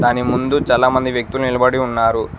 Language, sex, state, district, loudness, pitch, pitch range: Telugu, male, Telangana, Mahabubabad, -16 LUFS, 125 Hz, 120-130 Hz